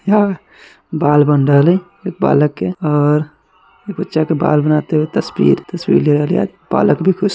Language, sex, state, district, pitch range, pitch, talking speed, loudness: Hindi, male, Bihar, Muzaffarpur, 150-190 Hz, 155 Hz, 155 wpm, -14 LUFS